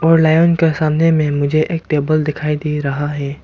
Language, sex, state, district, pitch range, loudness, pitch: Hindi, male, Arunachal Pradesh, Lower Dibang Valley, 145-160 Hz, -15 LUFS, 155 Hz